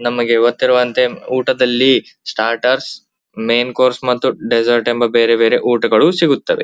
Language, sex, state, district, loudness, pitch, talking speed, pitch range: Kannada, male, Karnataka, Belgaum, -14 LUFS, 120 Hz, 135 wpm, 120-125 Hz